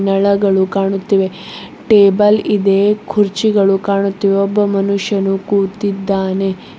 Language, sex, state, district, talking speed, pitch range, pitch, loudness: Kannada, female, Karnataka, Bidar, 80 wpm, 195-205 Hz, 200 Hz, -14 LUFS